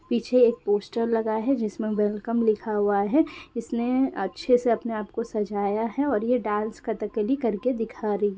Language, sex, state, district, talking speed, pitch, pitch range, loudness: Hindi, female, Uttar Pradesh, Gorakhpur, 185 wpm, 225 Hz, 210-240 Hz, -25 LUFS